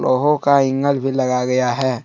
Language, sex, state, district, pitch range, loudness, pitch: Hindi, male, Jharkhand, Deoghar, 130-140 Hz, -17 LUFS, 135 Hz